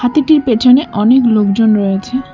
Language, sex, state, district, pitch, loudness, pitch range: Bengali, female, West Bengal, Cooch Behar, 240 Hz, -11 LUFS, 210-260 Hz